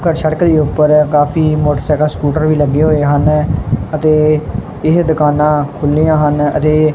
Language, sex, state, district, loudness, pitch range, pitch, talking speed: Punjabi, male, Punjab, Kapurthala, -12 LUFS, 150-155 Hz, 150 Hz, 165 wpm